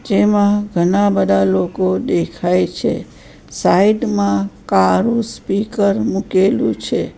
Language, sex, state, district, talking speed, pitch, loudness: Gujarati, female, Gujarat, Valsad, 100 wpm, 195 Hz, -16 LUFS